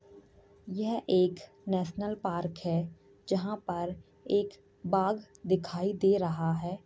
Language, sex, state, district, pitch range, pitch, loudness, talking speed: Hindi, female, Uttar Pradesh, Jyotiba Phule Nagar, 170-200 Hz, 185 Hz, -32 LUFS, 115 wpm